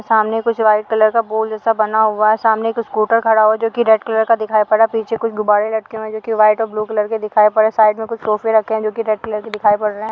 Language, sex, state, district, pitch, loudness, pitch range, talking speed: Hindi, female, Bihar, Muzaffarpur, 220 Hz, -15 LUFS, 215-225 Hz, 340 wpm